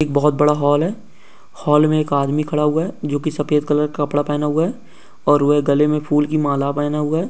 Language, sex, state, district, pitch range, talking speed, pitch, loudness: Hindi, female, Uttar Pradesh, Jyotiba Phule Nagar, 145-155 Hz, 255 wpm, 150 Hz, -18 LUFS